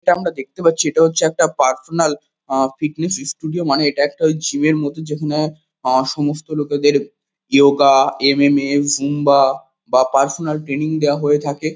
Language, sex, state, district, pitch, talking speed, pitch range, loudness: Bengali, male, West Bengal, Kolkata, 145 Hz, 160 wpm, 140-155 Hz, -17 LUFS